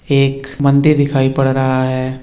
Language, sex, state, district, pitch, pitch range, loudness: Hindi, male, Uttar Pradesh, Etah, 135 Hz, 130-140 Hz, -14 LUFS